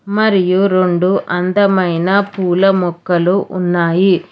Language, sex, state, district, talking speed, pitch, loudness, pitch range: Telugu, female, Telangana, Hyderabad, 85 wpm, 185 Hz, -14 LUFS, 180-195 Hz